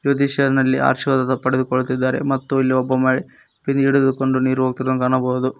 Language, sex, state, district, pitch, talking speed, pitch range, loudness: Kannada, male, Karnataka, Koppal, 130 Hz, 105 wpm, 130-135 Hz, -18 LUFS